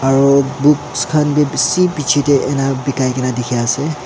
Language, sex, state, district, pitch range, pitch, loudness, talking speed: Nagamese, male, Nagaland, Dimapur, 130-145 Hz, 140 Hz, -15 LUFS, 175 wpm